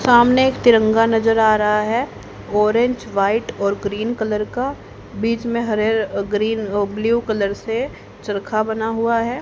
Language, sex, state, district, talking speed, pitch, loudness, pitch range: Hindi, female, Haryana, Jhajjar, 165 wpm, 220 Hz, -18 LUFS, 210-235 Hz